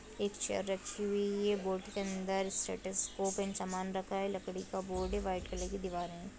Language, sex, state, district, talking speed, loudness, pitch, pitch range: Hindi, female, Bihar, Jahanabad, 205 wpm, -37 LUFS, 195 Hz, 185-200 Hz